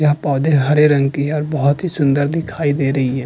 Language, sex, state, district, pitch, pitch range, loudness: Hindi, male, Uttarakhand, Tehri Garhwal, 145 Hz, 140-150 Hz, -16 LUFS